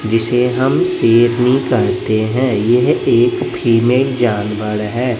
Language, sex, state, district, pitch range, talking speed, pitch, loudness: Hindi, male, Bihar, West Champaran, 110-125 Hz, 115 wpm, 120 Hz, -14 LUFS